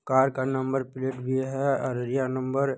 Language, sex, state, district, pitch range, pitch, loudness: Hindi, male, Bihar, Purnia, 130-135 Hz, 130 Hz, -27 LUFS